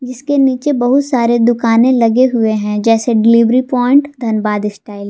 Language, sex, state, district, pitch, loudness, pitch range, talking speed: Hindi, female, Jharkhand, Palamu, 235 Hz, -12 LUFS, 225-255 Hz, 165 wpm